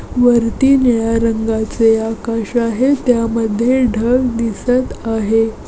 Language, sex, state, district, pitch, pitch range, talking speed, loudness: Marathi, female, Maharashtra, Aurangabad, 230 Hz, 225-245 Hz, 95 wpm, -15 LUFS